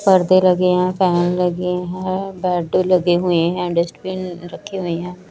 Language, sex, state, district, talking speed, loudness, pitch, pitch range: Hindi, female, Chhattisgarh, Raipur, 160 wpm, -18 LUFS, 180 Hz, 175-185 Hz